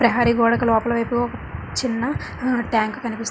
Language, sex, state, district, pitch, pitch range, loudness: Telugu, female, Andhra Pradesh, Srikakulam, 235 Hz, 230-240 Hz, -21 LUFS